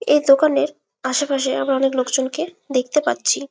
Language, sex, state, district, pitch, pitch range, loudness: Bengali, female, West Bengal, Malda, 275 Hz, 260-295 Hz, -19 LUFS